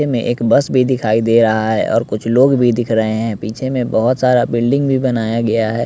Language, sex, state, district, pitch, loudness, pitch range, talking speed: Hindi, male, Bihar, West Champaran, 115 Hz, -15 LUFS, 110-125 Hz, 235 wpm